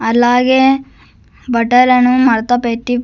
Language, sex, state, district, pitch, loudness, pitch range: Telugu, female, Andhra Pradesh, Sri Satya Sai, 245 Hz, -12 LUFS, 240-255 Hz